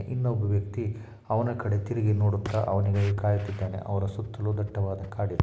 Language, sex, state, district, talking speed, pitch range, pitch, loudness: Kannada, male, Karnataka, Shimoga, 155 wpm, 100-110 Hz, 105 Hz, -28 LUFS